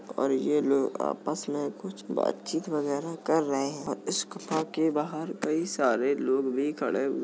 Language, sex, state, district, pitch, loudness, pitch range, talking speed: Hindi, male, Uttar Pradesh, Jalaun, 150 Hz, -29 LUFS, 140-160 Hz, 190 wpm